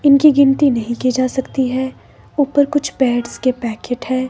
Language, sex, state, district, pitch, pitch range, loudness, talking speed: Hindi, female, Himachal Pradesh, Shimla, 260 Hz, 250-280 Hz, -16 LUFS, 180 wpm